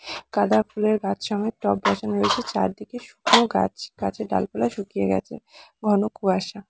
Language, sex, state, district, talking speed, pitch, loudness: Bengali, female, West Bengal, Purulia, 145 wpm, 195 Hz, -23 LUFS